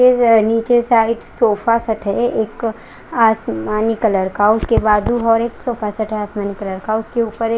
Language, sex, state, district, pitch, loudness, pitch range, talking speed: Hindi, female, Chandigarh, Chandigarh, 225 Hz, -16 LUFS, 210-230 Hz, 175 wpm